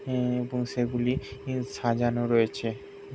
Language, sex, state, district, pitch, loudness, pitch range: Bengali, male, West Bengal, Jhargram, 125 Hz, -28 LUFS, 120-130 Hz